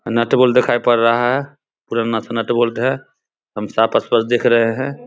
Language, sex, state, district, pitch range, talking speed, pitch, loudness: Hindi, male, Bihar, Samastipur, 115-125 Hz, 200 wpm, 120 Hz, -16 LUFS